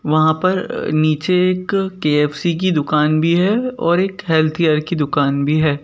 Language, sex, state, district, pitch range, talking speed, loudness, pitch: Hindi, male, Madhya Pradesh, Bhopal, 150-185 Hz, 185 wpm, -17 LUFS, 160 Hz